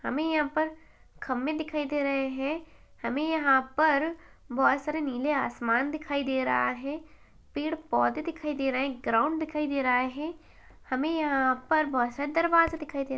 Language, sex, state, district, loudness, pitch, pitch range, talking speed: Hindi, female, Uttar Pradesh, Hamirpur, -28 LUFS, 290 Hz, 265-310 Hz, 180 wpm